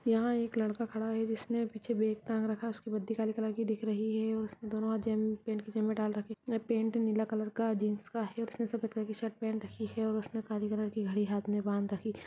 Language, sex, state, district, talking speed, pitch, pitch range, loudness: Hindi, female, Uttar Pradesh, Jyotiba Phule Nagar, 275 wpm, 220 Hz, 215-225 Hz, -35 LUFS